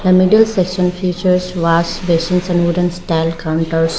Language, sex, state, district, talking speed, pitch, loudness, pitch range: English, female, Arunachal Pradesh, Lower Dibang Valley, 150 wpm, 175 Hz, -15 LUFS, 165-180 Hz